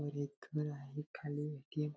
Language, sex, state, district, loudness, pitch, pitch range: Marathi, male, Maharashtra, Sindhudurg, -43 LUFS, 150 Hz, 145-150 Hz